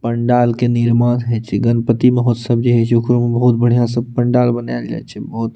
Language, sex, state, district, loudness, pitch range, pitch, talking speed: Maithili, male, Bihar, Purnia, -15 LUFS, 115-120 Hz, 120 Hz, 225 wpm